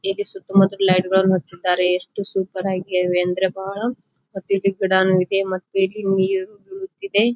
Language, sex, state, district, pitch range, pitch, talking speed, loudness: Kannada, female, Karnataka, Bijapur, 185-195 Hz, 190 Hz, 155 wpm, -20 LUFS